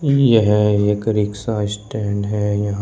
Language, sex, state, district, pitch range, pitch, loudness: Hindi, male, Uttar Pradesh, Shamli, 105-110 Hz, 105 Hz, -18 LUFS